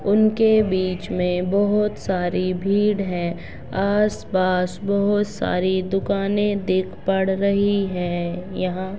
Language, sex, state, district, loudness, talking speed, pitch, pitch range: Hindi, female, Bihar, Begusarai, -21 LUFS, 105 wpm, 195 Hz, 185-205 Hz